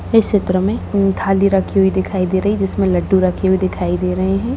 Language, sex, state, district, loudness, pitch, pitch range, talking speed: Hindi, female, Bihar, Purnia, -16 LUFS, 190 Hz, 185-195 Hz, 235 wpm